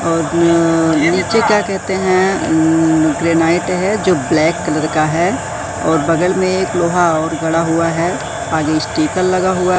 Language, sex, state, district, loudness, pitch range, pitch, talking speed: Hindi, male, Madhya Pradesh, Katni, -14 LUFS, 160-185 Hz, 170 Hz, 165 wpm